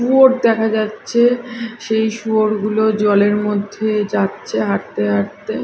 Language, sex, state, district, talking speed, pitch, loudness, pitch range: Bengali, female, Odisha, Khordha, 105 wpm, 215 Hz, -17 LUFS, 210-230 Hz